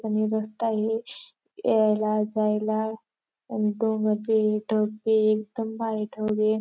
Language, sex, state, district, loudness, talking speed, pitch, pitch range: Marathi, female, Maharashtra, Dhule, -25 LUFS, 110 wpm, 215 Hz, 215-220 Hz